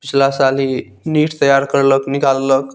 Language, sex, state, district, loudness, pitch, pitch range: Maithili, male, Bihar, Saharsa, -15 LUFS, 135 Hz, 135-140 Hz